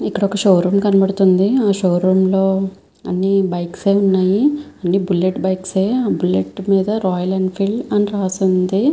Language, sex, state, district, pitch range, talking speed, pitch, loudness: Telugu, female, Andhra Pradesh, Visakhapatnam, 185-200 Hz, 155 wpm, 195 Hz, -16 LUFS